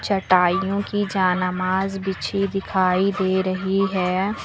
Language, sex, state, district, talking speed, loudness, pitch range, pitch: Hindi, female, Uttar Pradesh, Lucknow, 135 wpm, -21 LUFS, 185-195 Hz, 190 Hz